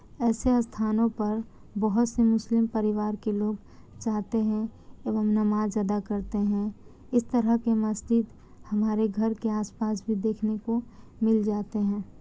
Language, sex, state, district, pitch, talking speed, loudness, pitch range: Hindi, female, Bihar, Kishanganj, 215 Hz, 140 wpm, -27 LUFS, 210-225 Hz